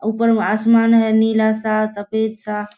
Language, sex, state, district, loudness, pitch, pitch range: Hindi, female, Bihar, Kishanganj, -17 LUFS, 220 Hz, 215-225 Hz